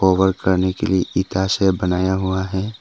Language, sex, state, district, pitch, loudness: Hindi, male, Arunachal Pradesh, Papum Pare, 95 Hz, -19 LUFS